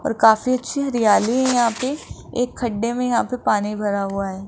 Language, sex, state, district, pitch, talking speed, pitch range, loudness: Hindi, male, Rajasthan, Jaipur, 235 Hz, 215 wpm, 210-250 Hz, -20 LUFS